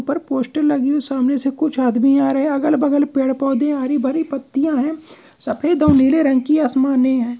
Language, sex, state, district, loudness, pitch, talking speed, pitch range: Hindi, male, Uttar Pradesh, Jyotiba Phule Nagar, -17 LUFS, 275 Hz, 205 wpm, 265-295 Hz